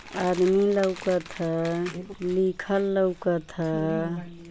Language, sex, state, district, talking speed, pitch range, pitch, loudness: Bhojpuri, female, Uttar Pradesh, Ghazipur, 80 wpm, 170-190 Hz, 180 Hz, -26 LUFS